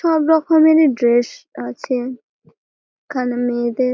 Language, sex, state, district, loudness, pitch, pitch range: Bengali, female, West Bengal, Malda, -16 LUFS, 255 Hz, 240-315 Hz